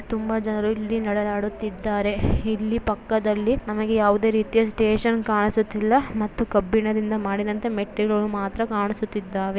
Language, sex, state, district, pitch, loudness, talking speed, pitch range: Kannada, female, Karnataka, Gulbarga, 215 Hz, -23 LUFS, 105 wpm, 210-220 Hz